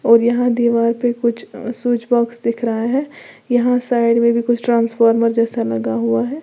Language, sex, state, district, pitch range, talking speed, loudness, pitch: Hindi, female, Uttar Pradesh, Lalitpur, 230-245 Hz, 185 wpm, -17 LUFS, 235 Hz